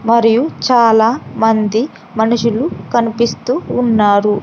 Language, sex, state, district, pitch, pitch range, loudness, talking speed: Telugu, female, Andhra Pradesh, Sri Satya Sai, 230 Hz, 220-235 Hz, -14 LUFS, 80 wpm